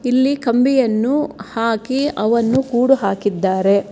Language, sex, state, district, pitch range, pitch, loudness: Kannada, female, Karnataka, Bangalore, 215-265 Hz, 235 Hz, -17 LUFS